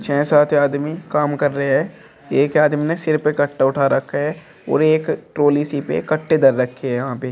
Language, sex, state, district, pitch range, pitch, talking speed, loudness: Hindi, male, Uttar Pradesh, Shamli, 140-150 Hz, 145 Hz, 220 wpm, -18 LUFS